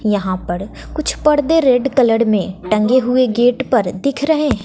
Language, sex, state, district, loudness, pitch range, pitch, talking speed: Hindi, female, Bihar, West Champaran, -15 LUFS, 205-280 Hz, 245 Hz, 180 wpm